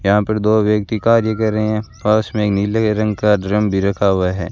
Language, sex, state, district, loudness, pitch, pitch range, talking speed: Hindi, male, Rajasthan, Bikaner, -16 LUFS, 105 Hz, 100-110 Hz, 250 wpm